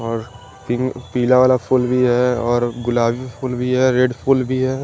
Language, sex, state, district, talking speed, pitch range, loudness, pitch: Hindi, male, Chandigarh, Chandigarh, 200 wpm, 120-130 Hz, -18 LUFS, 125 Hz